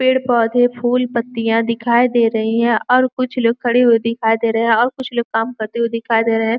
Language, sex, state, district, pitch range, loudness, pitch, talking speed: Hindi, female, Uttar Pradesh, Gorakhpur, 230-245 Hz, -16 LUFS, 235 Hz, 235 wpm